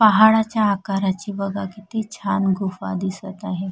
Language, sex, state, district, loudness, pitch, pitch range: Marathi, female, Maharashtra, Sindhudurg, -21 LUFS, 200 Hz, 190-210 Hz